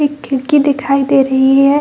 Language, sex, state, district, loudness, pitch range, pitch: Hindi, female, Bihar, Gaya, -12 LUFS, 270-285 Hz, 275 Hz